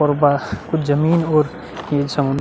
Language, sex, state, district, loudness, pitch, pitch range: Hindi, male, Uttar Pradesh, Budaun, -18 LUFS, 145 Hz, 140-155 Hz